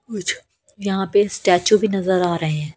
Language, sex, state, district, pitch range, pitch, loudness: Hindi, female, Haryana, Charkhi Dadri, 175-205 Hz, 195 Hz, -19 LUFS